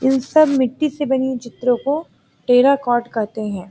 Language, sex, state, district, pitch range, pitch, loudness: Hindi, female, Uttar Pradesh, Varanasi, 240-280 Hz, 260 Hz, -18 LUFS